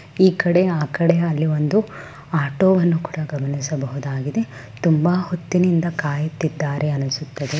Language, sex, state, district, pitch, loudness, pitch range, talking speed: Kannada, female, Karnataka, Bellary, 155 Hz, -20 LUFS, 140-170 Hz, 85 wpm